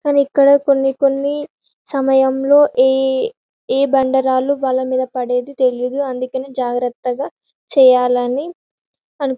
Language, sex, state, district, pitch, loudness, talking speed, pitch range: Telugu, female, Telangana, Karimnagar, 265 Hz, -16 LUFS, 95 wpm, 255-280 Hz